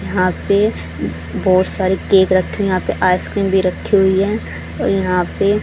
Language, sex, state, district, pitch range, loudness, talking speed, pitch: Hindi, female, Haryana, Charkhi Dadri, 185-200 Hz, -16 LUFS, 190 wpm, 190 Hz